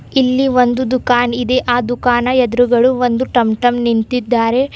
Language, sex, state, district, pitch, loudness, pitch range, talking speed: Kannada, female, Karnataka, Bidar, 245 Hz, -14 LUFS, 240-255 Hz, 140 wpm